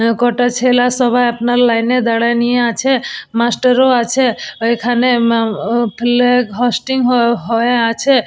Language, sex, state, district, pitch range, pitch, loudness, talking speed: Bengali, female, West Bengal, Purulia, 235-245 Hz, 240 Hz, -14 LUFS, 150 wpm